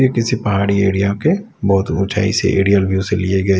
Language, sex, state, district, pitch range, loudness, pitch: Hindi, male, Bihar, West Champaran, 95-105 Hz, -16 LUFS, 100 Hz